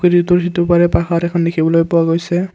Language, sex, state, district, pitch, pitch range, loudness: Assamese, male, Assam, Kamrup Metropolitan, 175 Hz, 170-175 Hz, -14 LUFS